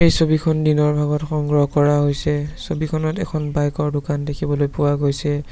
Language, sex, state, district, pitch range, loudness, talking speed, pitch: Assamese, male, Assam, Sonitpur, 145-155 Hz, -20 LUFS, 150 wpm, 150 Hz